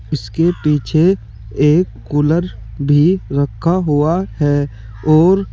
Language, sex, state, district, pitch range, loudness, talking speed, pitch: Hindi, male, Uttar Pradesh, Saharanpur, 135-170 Hz, -15 LUFS, 100 wpm, 150 Hz